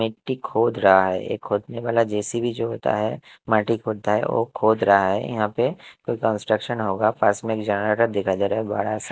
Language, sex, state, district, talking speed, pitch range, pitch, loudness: Hindi, male, Himachal Pradesh, Shimla, 225 wpm, 100-115 Hz, 110 Hz, -22 LUFS